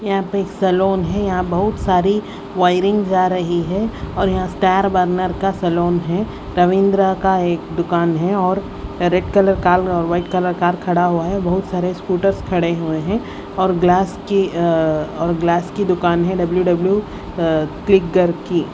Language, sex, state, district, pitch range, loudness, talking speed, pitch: Hindi, female, Haryana, Rohtak, 175-195 Hz, -17 LUFS, 165 wpm, 185 Hz